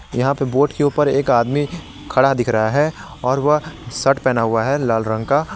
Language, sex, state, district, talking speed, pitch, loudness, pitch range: Hindi, male, Jharkhand, Garhwa, 215 wpm, 135 Hz, -18 LUFS, 120-145 Hz